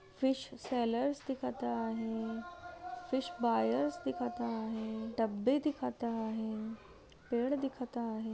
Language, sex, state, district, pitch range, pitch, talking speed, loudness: Marathi, female, Maharashtra, Solapur, 225-265 Hz, 235 Hz, 100 wpm, -36 LUFS